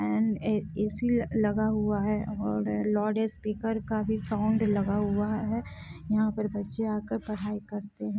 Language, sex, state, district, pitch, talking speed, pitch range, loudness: Hindi, female, Bihar, Jahanabad, 210 Hz, 155 wpm, 205-215 Hz, -29 LUFS